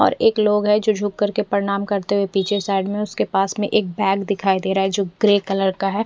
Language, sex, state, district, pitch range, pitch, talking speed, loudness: Hindi, female, Punjab, Fazilka, 195-210 Hz, 200 Hz, 265 wpm, -19 LUFS